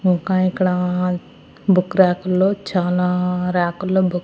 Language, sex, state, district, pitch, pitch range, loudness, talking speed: Telugu, female, Andhra Pradesh, Annamaya, 180 Hz, 180-185 Hz, -19 LUFS, 115 wpm